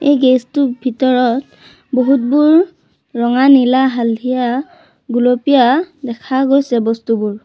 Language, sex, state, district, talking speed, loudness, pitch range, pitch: Assamese, female, Assam, Sonitpur, 95 wpm, -14 LUFS, 240-275 Hz, 255 Hz